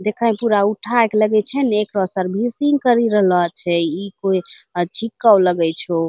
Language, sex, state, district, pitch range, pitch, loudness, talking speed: Angika, female, Bihar, Bhagalpur, 180-230 Hz, 205 Hz, -17 LUFS, 185 wpm